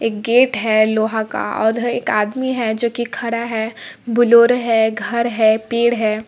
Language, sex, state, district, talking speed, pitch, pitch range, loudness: Hindi, female, Bihar, Samastipur, 180 wpm, 230 Hz, 220-235 Hz, -17 LUFS